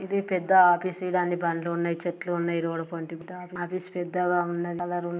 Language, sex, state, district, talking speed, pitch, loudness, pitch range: Telugu, female, Telangana, Karimnagar, 150 wpm, 175 Hz, -27 LUFS, 170-180 Hz